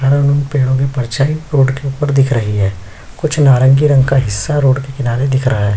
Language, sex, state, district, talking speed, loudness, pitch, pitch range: Hindi, male, Chhattisgarh, Sukma, 220 wpm, -13 LUFS, 135 Hz, 120-140 Hz